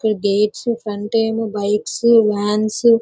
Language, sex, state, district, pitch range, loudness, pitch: Telugu, female, Andhra Pradesh, Visakhapatnam, 210-225 Hz, -17 LUFS, 215 Hz